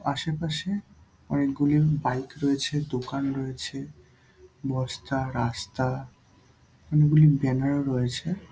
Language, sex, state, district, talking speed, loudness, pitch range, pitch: Bengali, male, West Bengal, Purulia, 75 wpm, -26 LUFS, 130-150 Hz, 135 Hz